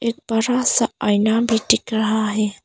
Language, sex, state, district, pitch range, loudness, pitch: Hindi, female, Arunachal Pradesh, Papum Pare, 215-235 Hz, -19 LUFS, 225 Hz